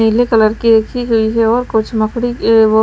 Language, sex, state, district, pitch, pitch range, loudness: Hindi, female, Maharashtra, Washim, 225 Hz, 220-235 Hz, -13 LUFS